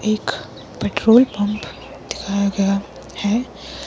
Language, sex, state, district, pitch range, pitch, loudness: Hindi, female, Himachal Pradesh, Shimla, 200-220 Hz, 205 Hz, -19 LUFS